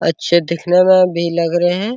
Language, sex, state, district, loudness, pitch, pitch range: Hindi, male, Bihar, Araria, -14 LUFS, 175 Hz, 170-185 Hz